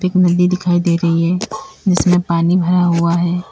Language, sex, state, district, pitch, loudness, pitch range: Hindi, female, Uttar Pradesh, Lalitpur, 180 Hz, -15 LUFS, 170-180 Hz